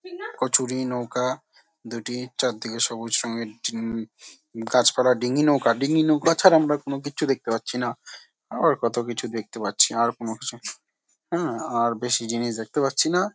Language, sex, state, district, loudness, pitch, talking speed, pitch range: Bengali, male, West Bengal, Jhargram, -23 LUFS, 125 Hz, 155 wpm, 115-140 Hz